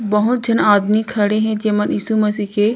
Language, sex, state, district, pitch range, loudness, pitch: Chhattisgarhi, female, Chhattisgarh, Korba, 210-220 Hz, -16 LUFS, 215 Hz